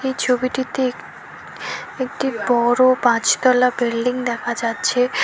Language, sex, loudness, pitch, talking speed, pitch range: Bengali, female, -19 LUFS, 250 Hz, 115 wpm, 240-255 Hz